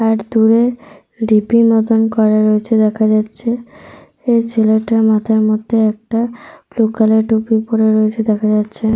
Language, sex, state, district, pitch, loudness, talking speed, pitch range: Bengali, female, Jharkhand, Sahebganj, 220 Hz, -14 LUFS, 140 wpm, 215-230 Hz